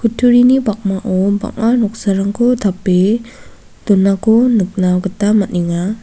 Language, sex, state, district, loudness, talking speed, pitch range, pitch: Garo, female, Meghalaya, South Garo Hills, -14 LUFS, 90 wpm, 195-230 Hz, 205 Hz